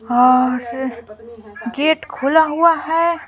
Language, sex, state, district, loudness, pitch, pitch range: Hindi, female, Bihar, Patna, -16 LUFS, 255 Hz, 235-315 Hz